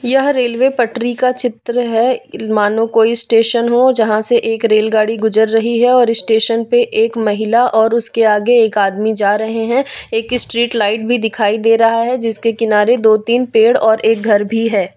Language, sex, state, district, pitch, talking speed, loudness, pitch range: Hindi, female, Bihar, West Champaran, 225 Hz, 190 wpm, -13 LUFS, 220-240 Hz